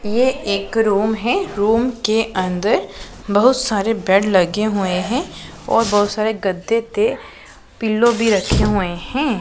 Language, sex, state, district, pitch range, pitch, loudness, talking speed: Hindi, female, Punjab, Pathankot, 200-230 Hz, 215 Hz, -18 LUFS, 145 wpm